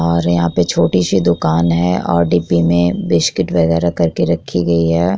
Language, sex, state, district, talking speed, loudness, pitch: Hindi, female, Chhattisgarh, Korba, 195 wpm, -14 LUFS, 85 Hz